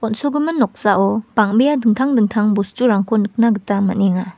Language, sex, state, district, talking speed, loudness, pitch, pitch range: Garo, female, Meghalaya, West Garo Hills, 125 wpm, -16 LUFS, 215 Hz, 200-245 Hz